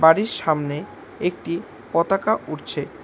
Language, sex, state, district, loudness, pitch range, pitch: Bengali, male, West Bengal, Alipurduar, -23 LUFS, 160-195 Hz, 170 Hz